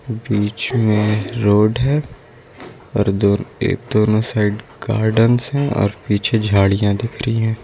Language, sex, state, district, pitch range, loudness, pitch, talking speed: Hindi, male, Uttar Pradesh, Lucknow, 105-120 Hz, -17 LUFS, 110 Hz, 125 wpm